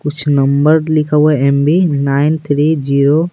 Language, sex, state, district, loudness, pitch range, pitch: Hindi, male, Bihar, Patna, -12 LUFS, 140-155 Hz, 150 Hz